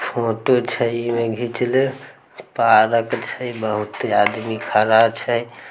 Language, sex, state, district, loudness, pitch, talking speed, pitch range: Maithili, male, Bihar, Samastipur, -19 LUFS, 115 Hz, 115 wpm, 110-120 Hz